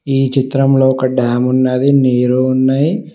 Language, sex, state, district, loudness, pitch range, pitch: Telugu, male, Telangana, Mahabubabad, -13 LUFS, 130-135 Hz, 130 Hz